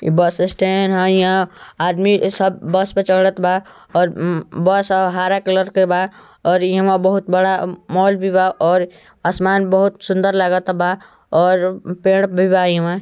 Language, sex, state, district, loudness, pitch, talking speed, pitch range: Bhojpuri, male, Bihar, East Champaran, -16 LUFS, 185 Hz, 165 wpm, 180-190 Hz